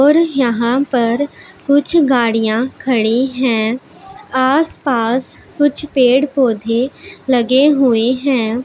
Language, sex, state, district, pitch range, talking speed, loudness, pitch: Hindi, female, Punjab, Pathankot, 235-285 Hz, 95 wpm, -15 LUFS, 260 Hz